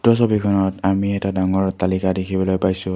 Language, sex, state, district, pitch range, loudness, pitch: Assamese, male, Assam, Kamrup Metropolitan, 95-100 Hz, -19 LUFS, 95 Hz